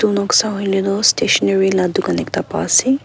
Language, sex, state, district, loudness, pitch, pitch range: Nagamese, female, Nagaland, Kohima, -16 LUFS, 200 Hz, 195-215 Hz